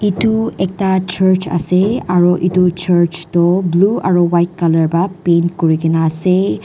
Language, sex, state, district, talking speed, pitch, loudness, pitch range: Nagamese, female, Nagaland, Dimapur, 155 wpm, 180 Hz, -14 LUFS, 170-185 Hz